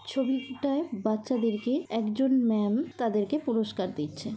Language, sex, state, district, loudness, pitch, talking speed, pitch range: Bengali, female, West Bengal, Malda, -29 LUFS, 230 Hz, 125 wpm, 215-265 Hz